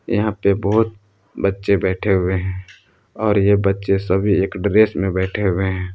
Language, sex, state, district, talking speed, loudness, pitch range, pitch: Hindi, male, Jharkhand, Palamu, 170 wpm, -18 LUFS, 95-100 Hz, 100 Hz